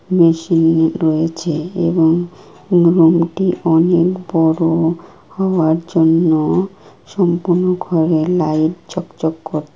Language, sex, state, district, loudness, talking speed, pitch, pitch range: Bengali, female, West Bengal, Kolkata, -15 LUFS, 90 wpm, 165 Hz, 160-175 Hz